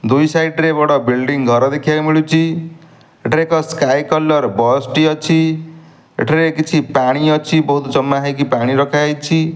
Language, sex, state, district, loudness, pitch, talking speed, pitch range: Odia, male, Odisha, Nuapada, -14 LUFS, 155 Hz, 155 wpm, 140-160 Hz